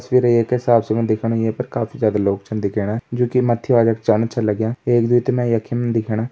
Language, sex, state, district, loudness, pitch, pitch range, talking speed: Garhwali, male, Uttarakhand, Tehri Garhwal, -18 LUFS, 115 Hz, 110-120 Hz, 235 wpm